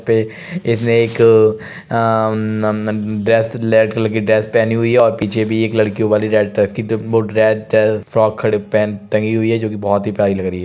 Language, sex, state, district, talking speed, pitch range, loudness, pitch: Hindi, male, Uttar Pradesh, Budaun, 175 wpm, 105-115 Hz, -15 LUFS, 110 Hz